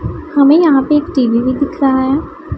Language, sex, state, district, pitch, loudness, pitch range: Hindi, female, Punjab, Pathankot, 280 Hz, -12 LUFS, 265-300 Hz